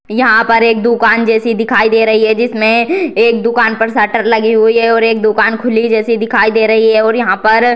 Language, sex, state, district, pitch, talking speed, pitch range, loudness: Hindi, female, Bihar, Purnia, 225 Hz, 230 wpm, 220-230 Hz, -10 LUFS